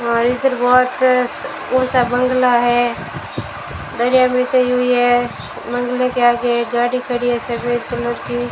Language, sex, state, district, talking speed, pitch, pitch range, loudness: Hindi, female, Rajasthan, Bikaner, 135 wpm, 245 Hz, 240-250 Hz, -16 LUFS